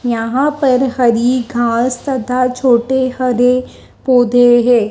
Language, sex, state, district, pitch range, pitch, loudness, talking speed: Hindi, female, Madhya Pradesh, Dhar, 240-255 Hz, 250 Hz, -13 LUFS, 110 wpm